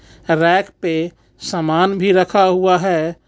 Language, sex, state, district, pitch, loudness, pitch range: Hindi, male, Jharkhand, Ranchi, 180 Hz, -16 LUFS, 165-190 Hz